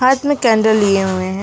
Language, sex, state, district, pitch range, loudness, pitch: Hindi, female, West Bengal, Alipurduar, 195-255 Hz, -14 LUFS, 220 Hz